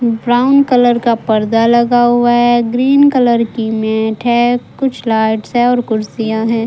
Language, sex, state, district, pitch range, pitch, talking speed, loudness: Hindi, female, Uttar Pradesh, Saharanpur, 225-245 Hz, 240 Hz, 160 wpm, -12 LUFS